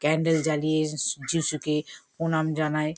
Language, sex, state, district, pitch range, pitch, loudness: Bengali, female, West Bengal, Kolkata, 150-160 Hz, 155 Hz, -26 LUFS